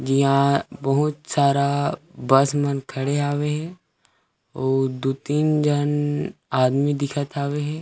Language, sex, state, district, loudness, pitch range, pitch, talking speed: Chhattisgarhi, male, Chhattisgarh, Rajnandgaon, -22 LUFS, 135-145 Hz, 140 Hz, 125 wpm